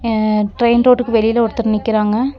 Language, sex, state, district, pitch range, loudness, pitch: Tamil, female, Tamil Nadu, Nilgiris, 215-235 Hz, -15 LUFS, 230 Hz